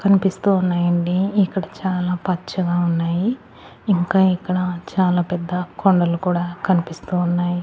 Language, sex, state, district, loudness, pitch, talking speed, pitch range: Telugu, female, Andhra Pradesh, Annamaya, -20 LUFS, 180 Hz, 110 wpm, 175-190 Hz